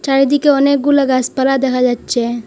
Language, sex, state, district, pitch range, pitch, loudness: Bengali, female, Assam, Hailakandi, 250-280 Hz, 270 Hz, -14 LUFS